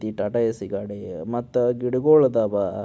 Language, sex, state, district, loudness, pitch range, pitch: Kannada, male, Karnataka, Belgaum, -22 LUFS, 105-125 Hz, 120 Hz